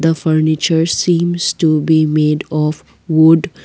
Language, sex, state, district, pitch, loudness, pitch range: English, female, Assam, Kamrup Metropolitan, 160 Hz, -14 LUFS, 155-165 Hz